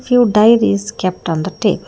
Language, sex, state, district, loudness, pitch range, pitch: English, female, Karnataka, Bangalore, -14 LUFS, 185-230 Hz, 210 Hz